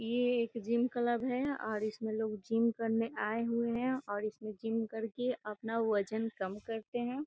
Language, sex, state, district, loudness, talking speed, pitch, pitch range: Hindi, female, Bihar, Gopalganj, -35 LUFS, 180 wpm, 225 Hz, 220-240 Hz